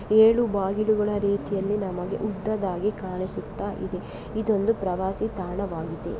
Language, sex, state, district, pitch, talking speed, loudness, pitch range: Kannada, female, Karnataka, Bellary, 200 Hz, 95 wpm, -26 LUFS, 185-215 Hz